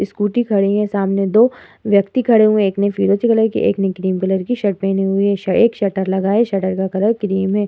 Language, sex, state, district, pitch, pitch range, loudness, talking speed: Hindi, female, Uttar Pradesh, Muzaffarnagar, 200 Hz, 195-215 Hz, -16 LUFS, 260 wpm